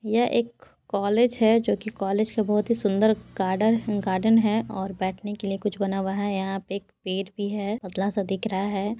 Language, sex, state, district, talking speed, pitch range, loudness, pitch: Hindi, female, Bihar, Purnia, 220 wpm, 195-220 Hz, -25 LUFS, 205 Hz